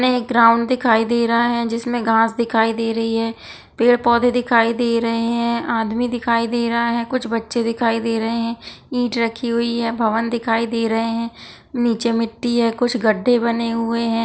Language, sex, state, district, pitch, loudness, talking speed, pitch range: Hindi, female, Chhattisgarh, Bilaspur, 235 Hz, -19 LUFS, 200 wpm, 230-240 Hz